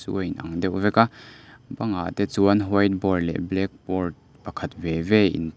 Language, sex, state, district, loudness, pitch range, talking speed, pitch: Mizo, male, Mizoram, Aizawl, -23 LUFS, 90-105 Hz, 185 wpm, 95 Hz